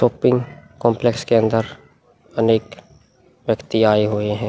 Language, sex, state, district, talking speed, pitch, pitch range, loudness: Hindi, male, Uttar Pradesh, Muzaffarnagar, 105 wpm, 115 Hz, 105-115 Hz, -19 LUFS